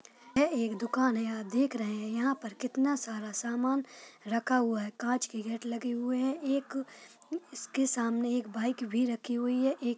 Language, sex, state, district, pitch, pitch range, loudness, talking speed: Hindi, female, Bihar, Purnia, 240 Hz, 230-260 Hz, -32 LUFS, 190 wpm